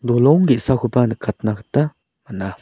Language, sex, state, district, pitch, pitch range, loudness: Garo, male, Meghalaya, South Garo Hills, 120 Hz, 110-130 Hz, -18 LUFS